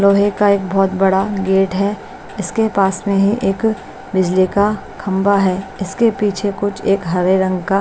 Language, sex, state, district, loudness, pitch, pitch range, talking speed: Hindi, female, Bihar, West Champaran, -16 LUFS, 195 Hz, 190-205 Hz, 175 wpm